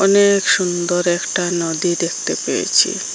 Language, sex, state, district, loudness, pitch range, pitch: Bengali, female, Assam, Hailakandi, -17 LUFS, 175-195 Hz, 175 Hz